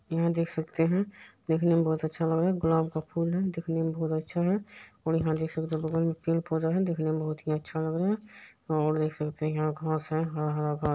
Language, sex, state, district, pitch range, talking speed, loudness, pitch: Maithili, male, Bihar, Supaul, 155-165 Hz, 255 wpm, -29 LUFS, 160 Hz